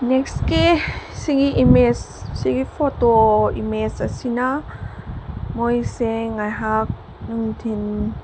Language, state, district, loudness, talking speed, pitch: Manipuri, Manipur, Imphal West, -20 LUFS, 80 wpm, 220 Hz